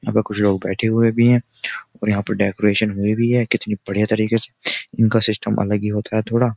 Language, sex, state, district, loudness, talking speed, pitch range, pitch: Hindi, male, Uttar Pradesh, Jyotiba Phule Nagar, -19 LUFS, 235 wpm, 105-115 Hz, 110 Hz